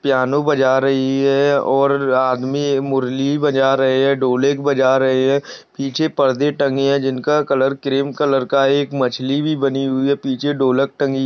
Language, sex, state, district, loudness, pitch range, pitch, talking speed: Hindi, male, Maharashtra, Solapur, -17 LUFS, 135-140 Hz, 135 Hz, 185 wpm